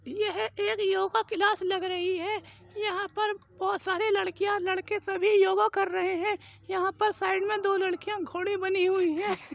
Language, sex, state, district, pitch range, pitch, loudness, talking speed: Hindi, female, Uttar Pradesh, Jyotiba Phule Nagar, 375-415 Hz, 390 Hz, -28 LUFS, 180 wpm